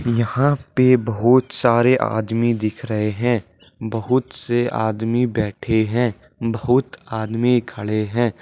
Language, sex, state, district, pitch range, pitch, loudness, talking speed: Hindi, male, Jharkhand, Deoghar, 110-125 Hz, 115 Hz, -20 LUFS, 120 wpm